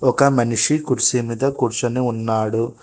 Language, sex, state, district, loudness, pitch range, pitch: Telugu, male, Telangana, Hyderabad, -19 LUFS, 115-130 Hz, 120 Hz